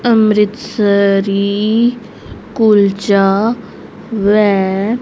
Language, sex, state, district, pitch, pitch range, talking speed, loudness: Hindi, female, Haryana, Rohtak, 210 Hz, 200-220 Hz, 35 wpm, -13 LUFS